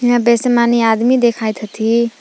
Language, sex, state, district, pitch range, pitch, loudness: Magahi, female, Jharkhand, Palamu, 225-240 Hz, 235 Hz, -14 LUFS